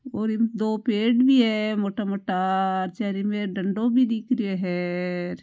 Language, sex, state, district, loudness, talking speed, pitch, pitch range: Marwari, female, Rajasthan, Nagaur, -24 LUFS, 175 wpm, 210 Hz, 190-230 Hz